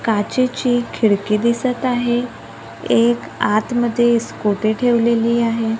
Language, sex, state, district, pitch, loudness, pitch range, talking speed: Marathi, female, Maharashtra, Gondia, 230 Hz, -17 LUFS, 210-240 Hz, 95 wpm